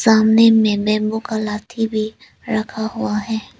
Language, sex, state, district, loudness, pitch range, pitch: Hindi, female, Arunachal Pradesh, Lower Dibang Valley, -18 LUFS, 215-225 Hz, 220 Hz